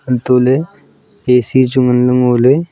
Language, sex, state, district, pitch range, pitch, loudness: Wancho, male, Arunachal Pradesh, Longding, 125-130 Hz, 125 Hz, -12 LUFS